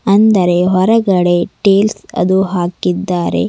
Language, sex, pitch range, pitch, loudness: Kannada, female, 175-200 Hz, 185 Hz, -13 LUFS